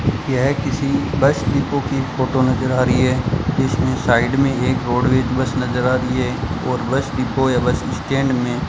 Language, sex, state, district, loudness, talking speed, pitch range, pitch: Hindi, male, Rajasthan, Bikaner, -18 LUFS, 195 wpm, 125-135 Hz, 130 Hz